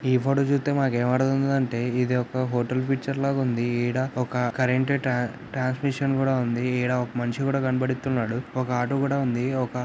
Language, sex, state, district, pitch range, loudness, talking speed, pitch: Telugu, male, Andhra Pradesh, Anantapur, 125-135 Hz, -25 LUFS, 165 wpm, 130 Hz